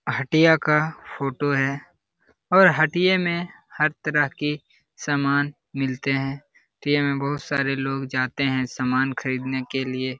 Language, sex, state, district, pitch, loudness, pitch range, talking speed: Hindi, male, Bihar, Lakhisarai, 140 Hz, -22 LUFS, 135-155 Hz, 140 wpm